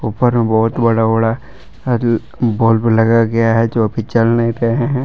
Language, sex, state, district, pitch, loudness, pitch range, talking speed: Hindi, male, Jharkhand, Palamu, 115 Hz, -14 LUFS, 115-120 Hz, 165 wpm